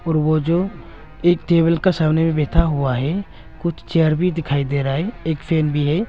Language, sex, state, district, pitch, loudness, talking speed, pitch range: Hindi, male, Arunachal Pradesh, Longding, 160 Hz, -19 LUFS, 215 wpm, 150-170 Hz